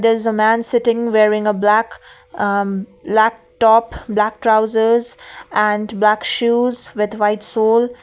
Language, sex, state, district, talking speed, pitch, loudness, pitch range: English, female, Sikkim, Gangtok, 140 wpm, 220 Hz, -16 LUFS, 210-230 Hz